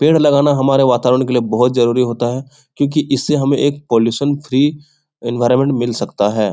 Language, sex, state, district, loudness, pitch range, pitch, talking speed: Hindi, male, Bihar, Jahanabad, -15 LUFS, 120-145 Hz, 135 Hz, 185 wpm